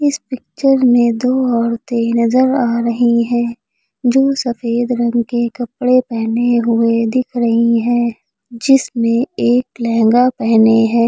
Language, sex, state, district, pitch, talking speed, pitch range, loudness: Hindi, female, Uttar Pradesh, Lucknow, 235 Hz, 130 wpm, 235-250 Hz, -14 LUFS